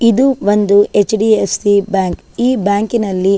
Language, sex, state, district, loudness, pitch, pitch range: Kannada, female, Karnataka, Chamarajanagar, -13 LUFS, 205 Hz, 200-230 Hz